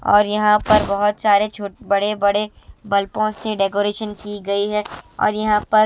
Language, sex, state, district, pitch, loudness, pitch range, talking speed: Hindi, female, Himachal Pradesh, Shimla, 210 Hz, -19 LUFS, 205-215 Hz, 165 wpm